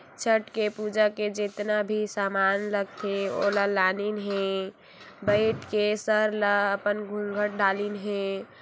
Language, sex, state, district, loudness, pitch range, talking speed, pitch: Hindi, female, Chhattisgarh, Sarguja, -27 LUFS, 200-210 Hz, 130 wpm, 205 Hz